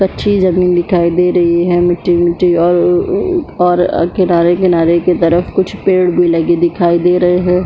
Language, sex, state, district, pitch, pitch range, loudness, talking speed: Hindi, female, Chhattisgarh, Bilaspur, 175 Hz, 175-180 Hz, -12 LUFS, 165 wpm